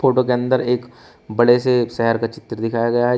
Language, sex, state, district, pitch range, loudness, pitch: Hindi, male, Uttar Pradesh, Shamli, 115-125 Hz, -18 LUFS, 120 Hz